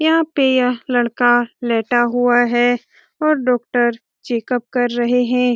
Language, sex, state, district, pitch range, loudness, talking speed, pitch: Hindi, female, Bihar, Saran, 240-250 Hz, -17 LUFS, 140 wpm, 245 Hz